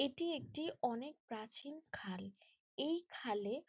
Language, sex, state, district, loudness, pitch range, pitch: Bengali, female, West Bengal, Jalpaiguri, -42 LUFS, 215-305 Hz, 260 Hz